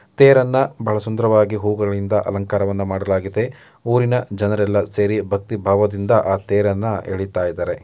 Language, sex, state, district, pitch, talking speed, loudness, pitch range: Kannada, male, Karnataka, Mysore, 105 Hz, 115 wpm, -18 LUFS, 100-110 Hz